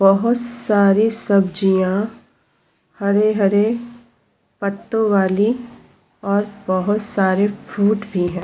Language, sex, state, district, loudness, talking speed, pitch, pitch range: Hindi, female, Uttar Pradesh, Jyotiba Phule Nagar, -18 LUFS, 85 wpm, 205 Hz, 195-220 Hz